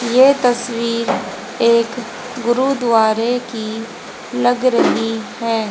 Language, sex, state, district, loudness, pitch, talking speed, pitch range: Hindi, female, Haryana, Charkhi Dadri, -17 LUFS, 235 Hz, 85 wpm, 230-245 Hz